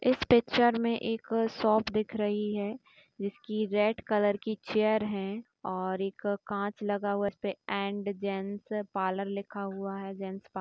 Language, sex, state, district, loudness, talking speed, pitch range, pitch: Hindi, female, Bihar, Bhagalpur, -31 LUFS, 165 wpm, 200-220 Hz, 205 Hz